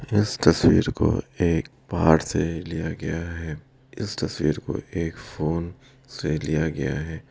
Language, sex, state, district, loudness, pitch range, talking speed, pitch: Hindi, male, Bihar, Bhagalpur, -24 LUFS, 80-90 Hz, 155 wpm, 80 Hz